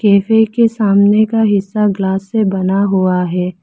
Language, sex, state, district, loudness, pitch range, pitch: Hindi, female, Arunachal Pradesh, Lower Dibang Valley, -13 LUFS, 190-215 Hz, 200 Hz